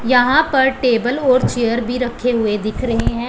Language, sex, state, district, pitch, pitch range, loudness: Hindi, female, Punjab, Pathankot, 245 Hz, 235-255 Hz, -16 LUFS